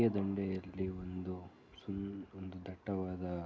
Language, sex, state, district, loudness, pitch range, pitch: Kannada, male, Karnataka, Shimoga, -41 LUFS, 90-100 Hz, 95 Hz